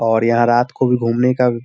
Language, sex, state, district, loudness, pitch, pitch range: Hindi, male, Bihar, Sitamarhi, -16 LUFS, 120 Hz, 115-125 Hz